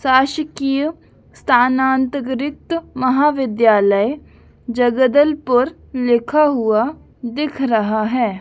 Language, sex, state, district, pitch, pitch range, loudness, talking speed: Hindi, female, Madhya Pradesh, Dhar, 260 Hz, 240-285 Hz, -17 LUFS, 65 wpm